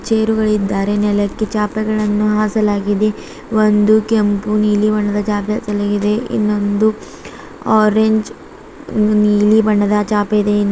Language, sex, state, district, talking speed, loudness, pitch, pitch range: Kannada, female, Karnataka, Bidar, 105 wpm, -15 LUFS, 210 Hz, 205-215 Hz